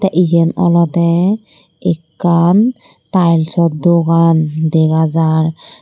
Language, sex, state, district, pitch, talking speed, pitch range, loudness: Chakma, female, Tripura, Dhalai, 170 Hz, 70 wpm, 160-175 Hz, -13 LUFS